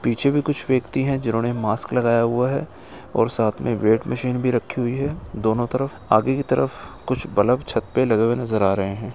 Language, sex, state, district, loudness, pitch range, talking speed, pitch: Hindi, male, Uttar Pradesh, Etah, -21 LUFS, 110-130 Hz, 225 wpm, 120 Hz